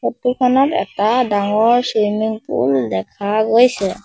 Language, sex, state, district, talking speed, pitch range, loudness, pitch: Assamese, male, Assam, Sonitpur, 120 wpm, 200-245 Hz, -16 LUFS, 215 Hz